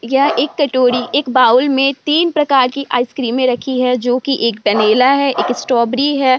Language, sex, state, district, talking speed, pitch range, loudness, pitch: Hindi, female, Bihar, Vaishali, 190 wpm, 245-280 Hz, -14 LUFS, 260 Hz